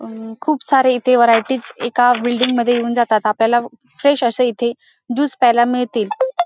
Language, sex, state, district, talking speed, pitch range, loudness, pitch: Marathi, female, Maharashtra, Dhule, 160 wpm, 235-260 Hz, -16 LUFS, 245 Hz